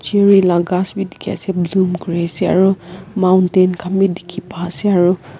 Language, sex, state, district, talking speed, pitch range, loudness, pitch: Nagamese, female, Nagaland, Kohima, 190 wpm, 175-190 Hz, -15 LUFS, 185 Hz